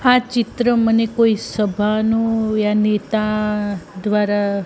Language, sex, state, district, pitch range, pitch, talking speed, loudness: Gujarati, female, Gujarat, Gandhinagar, 210-225 Hz, 215 Hz, 105 wpm, -18 LUFS